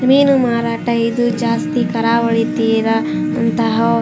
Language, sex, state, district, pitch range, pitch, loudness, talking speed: Kannada, female, Karnataka, Raichur, 225-240 Hz, 230 Hz, -15 LUFS, 120 wpm